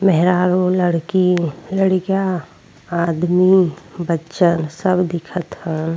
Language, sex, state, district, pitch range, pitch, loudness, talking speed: Bhojpuri, female, Uttar Pradesh, Deoria, 170-185 Hz, 180 Hz, -18 LUFS, 80 wpm